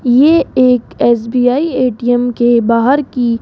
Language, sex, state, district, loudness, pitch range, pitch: Hindi, female, Rajasthan, Jaipur, -12 LUFS, 240-255 Hz, 245 Hz